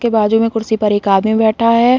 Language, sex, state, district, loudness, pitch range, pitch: Hindi, female, Uttar Pradesh, Deoria, -14 LUFS, 215-230 Hz, 220 Hz